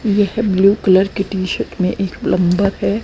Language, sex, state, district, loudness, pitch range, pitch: Hindi, female, Haryana, Charkhi Dadri, -16 LUFS, 185-200 Hz, 195 Hz